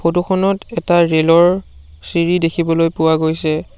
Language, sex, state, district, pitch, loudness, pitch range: Assamese, male, Assam, Sonitpur, 165 Hz, -15 LUFS, 160-175 Hz